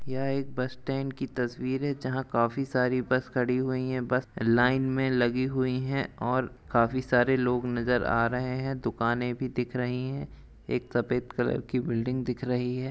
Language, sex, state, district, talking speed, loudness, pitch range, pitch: Hindi, male, Uttar Pradesh, Jalaun, 190 wpm, -29 LUFS, 125-130 Hz, 125 Hz